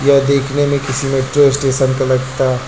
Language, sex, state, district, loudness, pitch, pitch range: Hindi, male, Uttar Pradesh, Lucknow, -14 LUFS, 135 Hz, 130-140 Hz